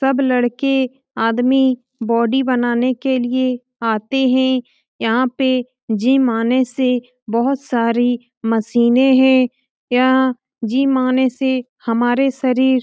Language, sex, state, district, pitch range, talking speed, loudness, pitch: Hindi, female, Bihar, Lakhisarai, 240-260 Hz, 120 wpm, -17 LUFS, 255 Hz